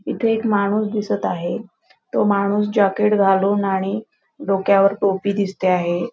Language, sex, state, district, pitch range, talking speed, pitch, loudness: Marathi, female, Maharashtra, Nagpur, 195-210 Hz, 135 wpm, 200 Hz, -19 LUFS